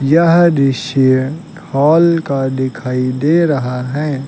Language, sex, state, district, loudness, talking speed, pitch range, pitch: Hindi, male, Uttar Pradesh, Lucknow, -14 LUFS, 110 wpm, 130-160 Hz, 135 Hz